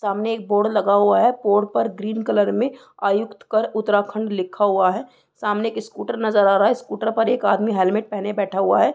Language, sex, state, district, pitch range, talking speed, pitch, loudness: Hindi, female, Uttarakhand, Tehri Garhwal, 205-225 Hz, 215 wpm, 210 Hz, -20 LUFS